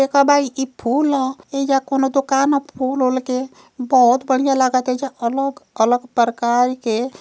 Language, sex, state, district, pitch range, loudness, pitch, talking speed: Bhojpuri, female, Uttar Pradesh, Gorakhpur, 250-275 Hz, -18 LUFS, 265 Hz, 175 wpm